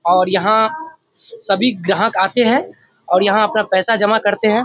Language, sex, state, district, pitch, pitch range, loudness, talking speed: Hindi, male, Bihar, Darbhanga, 215 Hz, 195-235 Hz, -15 LUFS, 180 wpm